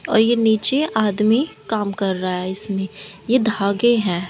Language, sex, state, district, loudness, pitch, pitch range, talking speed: Hindi, female, Haryana, Jhajjar, -18 LUFS, 210 Hz, 195-225 Hz, 155 wpm